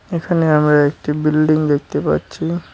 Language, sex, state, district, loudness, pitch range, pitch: Bengali, male, West Bengal, Cooch Behar, -16 LUFS, 150-165 Hz, 155 Hz